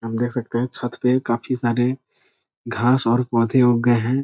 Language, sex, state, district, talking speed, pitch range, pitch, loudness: Hindi, male, Bihar, Araria, 200 wpm, 120-125 Hz, 120 Hz, -20 LUFS